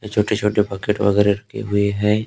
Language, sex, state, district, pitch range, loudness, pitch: Hindi, male, Maharashtra, Gondia, 100-105 Hz, -19 LUFS, 105 Hz